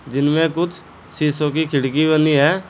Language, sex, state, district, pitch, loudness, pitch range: Hindi, male, Uttar Pradesh, Saharanpur, 155 Hz, -18 LUFS, 145-165 Hz